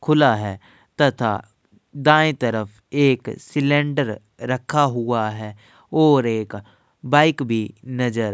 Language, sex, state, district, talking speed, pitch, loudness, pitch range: Hindi, male, Uttar Pradesh, Jyotiba Phule Nagar, 115 wpm, 125 Hz, -20 LUFS, 110-145 Hz